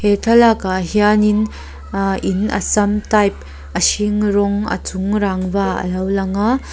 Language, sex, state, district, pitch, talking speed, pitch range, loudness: Mizo, female, Mizoram, Aizawl, 205 Hz, 150 wpm, 190-210 Hz, -16 LUFS